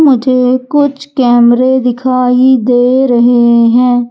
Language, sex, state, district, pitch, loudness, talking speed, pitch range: Hindi, female, Madhya Pradesh, Katni, 250 Hz, -9 LUFS, 100 wpm, 245-260 Hz